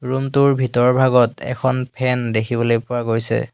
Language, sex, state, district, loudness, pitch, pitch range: Assamese, male, Assam, Hailakandi, -18 LUFS, 125 Hz, 120-130 Hz